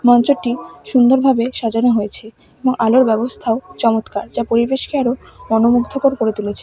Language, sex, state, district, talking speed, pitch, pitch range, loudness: Bengali, female, West Bengal, Alipurduar, 125 wpm, 240 Hz, 225-260 Hz, -16 LUFS